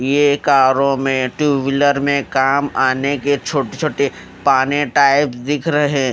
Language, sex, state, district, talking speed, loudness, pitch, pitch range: Hindi, male, Haryana, Rohtak, 145 wpm, -16 LUFS, 140 Hz, 135-145 Hz